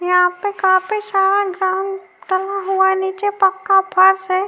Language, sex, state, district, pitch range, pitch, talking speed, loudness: Hindi, female, Uttar Pradesh, Jyotiba Phule Nagar, 375-395 Hz, 385 Hz, 160 wpm, -16 LUFS